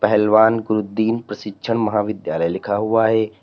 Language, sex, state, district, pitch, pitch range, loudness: Hindi, male, Uttar Pradesh, Lalitpur, 110 Hz, 105-110 Hz, -19 LUFS